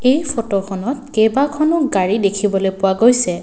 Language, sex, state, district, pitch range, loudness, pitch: Assamese, male, Assam, Kamrup Metropolitan, 195-265 Hz, -16 LUFS, 220 Hz